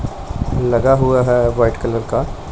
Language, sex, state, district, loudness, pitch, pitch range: Hindi, male, Punjab, Pathankot, -16 LUFS, 120 Hz, 115-130 Hz